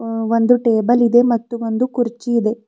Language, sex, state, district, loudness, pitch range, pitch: Kannada, female, Karnataka, Bidar, -16 LUFS, 230-240 Hz, 235 Hz